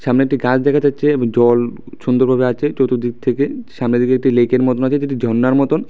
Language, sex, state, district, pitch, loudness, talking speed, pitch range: Bengali, male, Tripura, West Tripura, 130 Hz, -16 LUFS, 235 wpm, 125-140 Hz